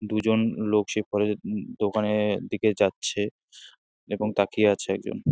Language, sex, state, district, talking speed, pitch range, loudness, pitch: Bengali, male, West Bengal, Jalpaiguri, 145 wpm, 105-110 Hz, -26 LUFS, 105 Hz